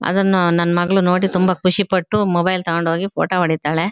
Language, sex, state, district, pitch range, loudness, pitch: Kannada, female, Karnataka, Shimoga, 170-190 Hz, -17 LUFS, 180 Hz